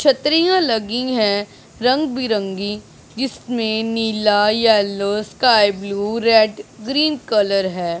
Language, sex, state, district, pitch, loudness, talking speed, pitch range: Hindi, male, Punjab, Pathankot, 220 Hz, -18 LUFS, 105 wpm, 205-250 Hz